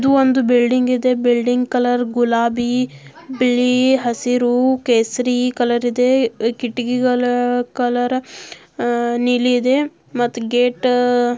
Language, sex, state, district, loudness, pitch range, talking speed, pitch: Kannada, female, Karnataka, Belgaum, -17 LUFS, 240-250 Hz, 100 wpm, 245 Hz